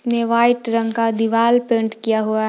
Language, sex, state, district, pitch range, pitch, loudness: Hindi, female, Jharkhand, Palamu, 225-235 Hz, 230 Hz, -18 LUFS